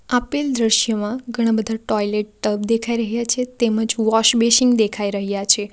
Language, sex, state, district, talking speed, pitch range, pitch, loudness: Gujarati, female, Gujarat, Valsad, 155 wpm, 210-235 Hz, 225 Hz, -19 LUFS